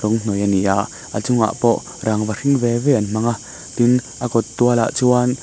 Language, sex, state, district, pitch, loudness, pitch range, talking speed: Mizo, male, Mizoram, Aizawl, 115 Hz, -18 LUFS, 105-125 Hz, 220 wpm